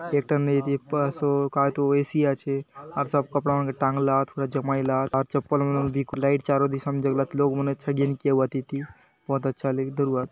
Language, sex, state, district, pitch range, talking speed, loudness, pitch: Halbi, male, Chhattisgarh, Bastar, 135-140 Hz, 205 wpm, -25 LUFS, 140 Hz